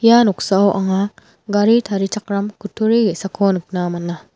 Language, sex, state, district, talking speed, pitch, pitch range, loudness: Garo, female, Meghalaya, West Garo Hills, 125 wpm, 200 Hz, 190-215 Hz, -17 LUFS